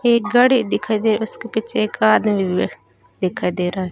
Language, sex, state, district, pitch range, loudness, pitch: Hindi, female, Rajasthan, Bikaner, 185-230 Hz, -18 LUFS, 215 Hz